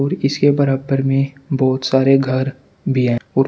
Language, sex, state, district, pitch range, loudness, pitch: Hindi, male, Uttar Pradesh, Shamli, 130-140 Hz, -17 LUFS, 135 Hz